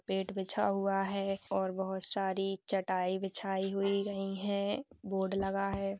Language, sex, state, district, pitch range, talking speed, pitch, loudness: Hindi, female, Uttar Pradesh, Budaun, 190-195 Hz, 150 wpm, 195 Hz, -35 LUFS